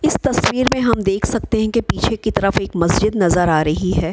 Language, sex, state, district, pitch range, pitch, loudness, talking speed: Hindi, female, Bihar, Kishanganj, 175-225 Hz, 195 Hz, -17 LUFS, 245 wpm